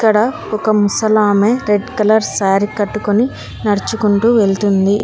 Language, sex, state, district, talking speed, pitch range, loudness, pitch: Telugu, female, Telangana, Hyderabad, 105 wpm, 205-220 Hz, -14 LUFS, 210 Hz